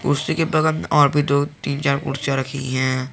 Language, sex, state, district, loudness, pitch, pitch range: Hindi, male, Jharkhand, Garhwa, -20 LUFS, 140 Hz, 135-145 Hz